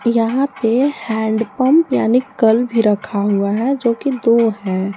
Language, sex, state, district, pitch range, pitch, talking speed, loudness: Hindi, female, Jharkhand, Palamu, 220-260 Hz, 230 Hz, 170 wpm, -16 LUFS